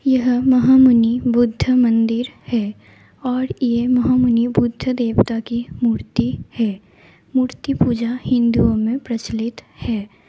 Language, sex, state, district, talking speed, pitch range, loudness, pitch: Hindi, female, Bihar, Lakhisarai, 105 wpm, 230-255 Hz, -18 LUFS, 240 Hz